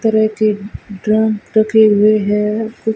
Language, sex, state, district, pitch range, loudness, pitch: Hindi, female, Rajasthan, Bikaner, 210-220 Hz, -14 LUFS, 215 Hz